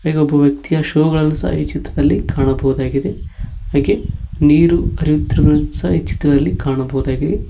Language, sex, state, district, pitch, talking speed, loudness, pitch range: Kannada, male, Karnataka, Koppal, 135 Hz, 130 wpm, -16 LUFS, 100-150 Hz